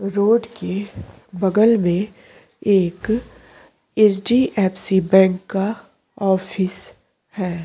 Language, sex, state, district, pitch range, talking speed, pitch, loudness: Hindi, female, Chhattisgarh, Korba, 185-215 Hz, 100 wpm, 195 Hz, -19 LUFS